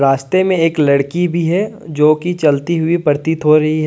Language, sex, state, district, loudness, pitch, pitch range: Hindi, male, Jharkhand, Deoghar, -14 LUFS, 160 Hz, 150-175 Hz